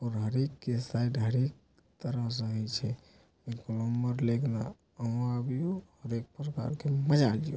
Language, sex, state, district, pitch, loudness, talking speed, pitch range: Angika, male, Bihar, Supaul, 120 Hz, -33 LUFS, 45 wpm, 115-135 Hz